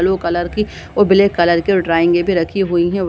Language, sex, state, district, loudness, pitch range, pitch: Hindi, female, Bihar, Lakhisarai, -15 LUFS, 170-195 Hz, 180 Hz